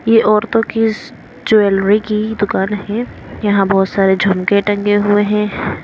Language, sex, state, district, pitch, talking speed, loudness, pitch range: Hindi, female, Haryana, Rohtak, 205 Hz, 155 wpm, -14 LUFS, 200-215 Hz